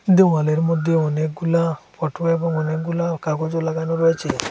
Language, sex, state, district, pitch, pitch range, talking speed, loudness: Bengali, male, Assam, Hailakandi, 165 Hz, 155-165 Hz, 120 wpm, -20 LUFS